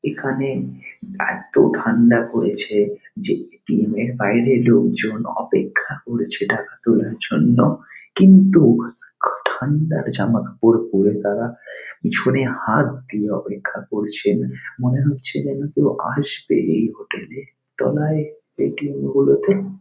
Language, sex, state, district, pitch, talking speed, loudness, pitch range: Bengali, male, West Bengal, Paschim Medinipur, 125 Hz, 120 wpm, -19 LUFS, 105-145 Hz